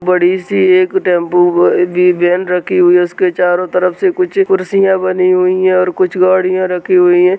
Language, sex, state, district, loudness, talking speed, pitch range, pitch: Hindi, female, Maharashtra, Dhule, -11 LUFS, 205 wpm, 180-185 Hz, 185 Hz